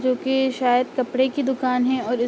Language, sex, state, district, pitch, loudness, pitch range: Hindi, female, Uttar Pradesh, Ghazipur, 255 Hz, -21 LUFS, 250-265 Hz